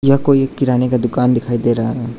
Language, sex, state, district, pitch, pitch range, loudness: Hindi, male, Arunachal Pradesh, Lower Dibang Valley, 125 Hz, 120-135 Hz, -16 LUFS